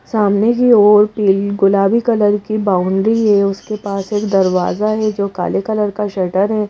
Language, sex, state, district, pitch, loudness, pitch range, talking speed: Hindi, female, Madhya Pradesh, Bhopal, 205 Hz, -14 LUFS, 195-215 Hz, 180 wpm